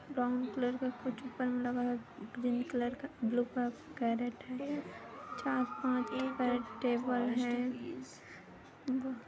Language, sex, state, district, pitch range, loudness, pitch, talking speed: Hindi, female, Chhattisgarh, Kabirdham, 245-255 Hz, -36 LUFS, 245 Hz, 125 wpm